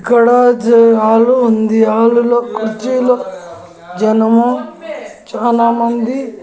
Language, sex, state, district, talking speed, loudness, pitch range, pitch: Telugu, female, Andhra Pradesh, Annamaya, 75 wpm, -12 LUFS, 220-245 Hz, 235 Hz